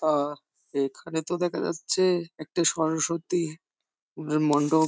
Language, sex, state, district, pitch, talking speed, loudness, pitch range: Bengali, female, West Bengal, Jhargram, 160 Hz, 125 wpm, -27 LUFS, 150-170 Hz